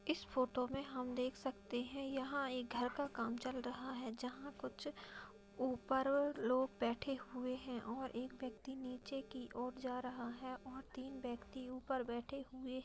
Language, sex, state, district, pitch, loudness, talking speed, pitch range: Hindi, female, Uttar Pradesh, Hamirpur, 255 Hz, -44 LUFS, 175 wpm, 245-265 Hz